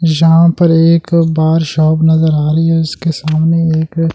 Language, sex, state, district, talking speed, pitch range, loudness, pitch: Hindi, male, Delhi, New Delhi, 175 wpm, 160-165 Hz, -11 LUFS, 160 Hz